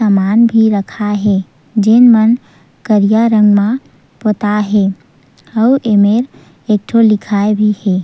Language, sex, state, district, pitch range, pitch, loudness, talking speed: Chhattisgarhi, female, Chhattisgarh, Sukma, 200-225 Hz, 210 Hz, -12 LUFS, 140 wpm